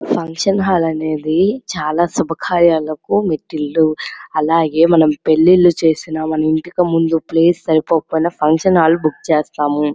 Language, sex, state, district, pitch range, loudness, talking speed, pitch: Telugu, female, Andhra Pradesh, Srikakulam, 155-170 Hz, -15 LUFS, 115 wpm, 160 Hz